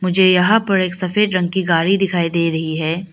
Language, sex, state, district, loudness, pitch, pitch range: Hindi, female, Arunachal Pradesh, Lower Dibang Valley, -16 LUFS, 185 Hz, 170-190 Hz